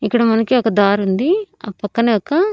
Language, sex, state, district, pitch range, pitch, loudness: Telugu, female, Andhra Pradesh, Annamaya, 205-295 Hz, 230 Hz, -16 LUFS